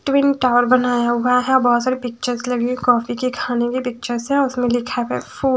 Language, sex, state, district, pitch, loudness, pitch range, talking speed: Hindi, female, Punjab, Fazilka, 250 Hz, -18 LUFS, 240-255 Hz, 260 wpm